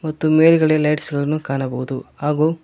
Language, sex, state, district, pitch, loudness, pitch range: Kannada, male, Karnataka, Koppal, 150 Hz, -18 LUFS, 140-155 Hz